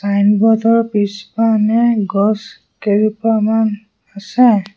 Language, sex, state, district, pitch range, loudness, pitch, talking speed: Assamese, male, Assam, Sonitpur, 205-225 Hz, -14 LUFS, 215 Hz, 75 wpm